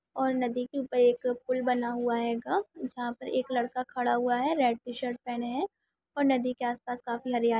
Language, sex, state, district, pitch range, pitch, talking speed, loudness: Hindi, female, Chhattisgarh, Jashpur, 240-255 Hz, 245 Hz, 215 wpm, -30 LUFS